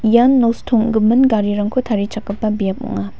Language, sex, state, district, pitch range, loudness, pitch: Garo, female, Meghalaya, West Garo Hills, 205-235 Hz, -16 LUFS, 220 Hz